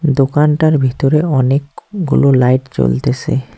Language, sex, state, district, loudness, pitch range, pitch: Bengali, male, West Bengal, Cooch Behar, -13 LUFS, 130-150 Hz, 135 Hz